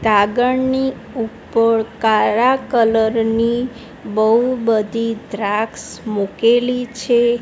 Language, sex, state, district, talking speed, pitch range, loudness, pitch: Gujarati, female, Gujarat, Gandhinagar, 80 wpm, 220-245 Hz, -17 LUFS, 230 Hz